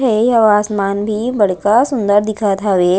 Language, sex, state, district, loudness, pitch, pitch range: Chhattisgarhi, female, Chhattisgarh, Raigarh, -14 LUFS, 210 Hz, 200-220 Hz